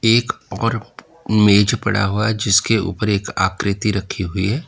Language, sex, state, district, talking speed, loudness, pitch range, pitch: Hindi, male, Uttar Pradesh, Lalitpur, 165 wpm, -18 LUFS, 100-115 Hz, 105 Hz